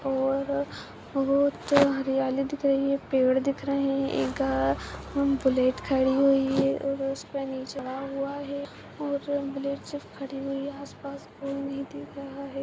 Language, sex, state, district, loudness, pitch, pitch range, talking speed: Hindi, female, Bihar, Jahanabad, -27 LUFS, 275 Hz, 270-280 Hz, 170 wpm